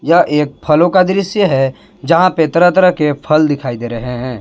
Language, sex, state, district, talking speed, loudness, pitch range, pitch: Hindi, male, Jharkhand, Palamu, 215 wpm, -13 LUFS, 135-180 Hz, 155 Hz